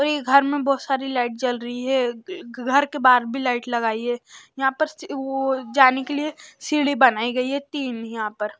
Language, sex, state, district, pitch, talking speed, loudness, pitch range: Hindi, male, Maharashtra, Washim, 265 Hz, 195 wpm, -22 LUFS, 245-285 Hz